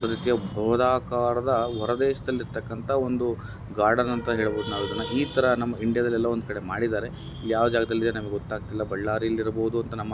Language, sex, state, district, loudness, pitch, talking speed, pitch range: Kannada, male, Karnataka, Bellary, -26 LUFS, 115 Hz, 130 wpm, 110-120 Hz